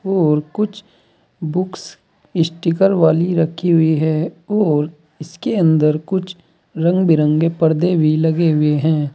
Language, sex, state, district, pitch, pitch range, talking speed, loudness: Hindi, male, Uttar Pradesh, Saharanpur, 165 Hz, 155-180 Hz, 125 wpm, -16 LUFS